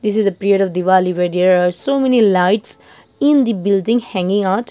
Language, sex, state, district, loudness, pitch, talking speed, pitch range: English, female, Nagaland, Dimapur, -15 LUFS, 200 Hz, 205 wpm, 185-225 Hz